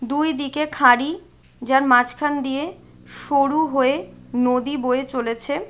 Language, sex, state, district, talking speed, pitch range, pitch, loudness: Bengali, female, West Bengal, Jhargram, 115 wpm, 250-295 Hz, 275 Hz, -19 LUFS